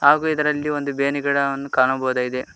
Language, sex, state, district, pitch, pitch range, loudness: Kannada, male, Karnataka, Koppal, 140 Hz, 130-145 Hz, -20 LUFS